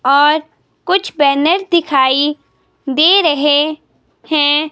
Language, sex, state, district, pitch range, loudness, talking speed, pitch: Hindi, female, Himachal Pradesh, Shimla, 285-325 Hz, -13 LUFS, 90 wpm, 300 Hz